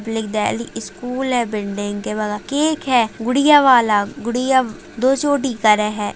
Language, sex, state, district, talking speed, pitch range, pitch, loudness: Hindi, female, Uttar Pradesh, Budaun, 155 wpm, 215-265 Hz, 235 Hz, -18 LUFS